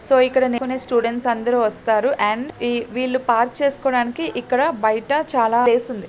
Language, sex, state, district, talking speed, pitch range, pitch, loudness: Telugu, female, Telangana, Karimnagar, 145 wpm, 235-260 Hz, 245 Hz, -19 LUFS